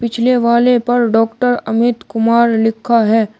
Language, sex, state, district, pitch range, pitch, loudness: Hindi, male, Uttar Pradesh, Shamli, 225-240 Hz, 235 Hz, -13 LUFS